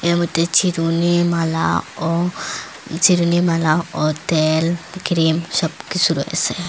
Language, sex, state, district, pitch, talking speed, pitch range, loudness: Bengali, female, Assam, Hailakandi, 170 Hz, 110 wpm, 160-175 Hz, -18 LUFS